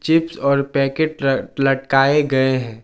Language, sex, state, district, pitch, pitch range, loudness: Hindi, male, Jharkhand, Garhwa, 135 Hz, 135-150 Hz, -18 LUFS